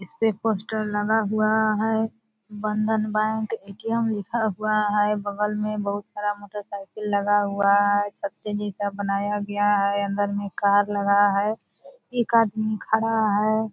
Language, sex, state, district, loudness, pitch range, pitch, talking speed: Hindi, female, Bihar, Purnia, -24 LUFS, 205-220 Hz, 210 Hz, 140 wpm